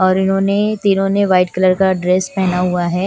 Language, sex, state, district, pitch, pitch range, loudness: Hindi, female, Punjab, Kapurthala, 190 Hz, 180-195 Hz, -15 LUFS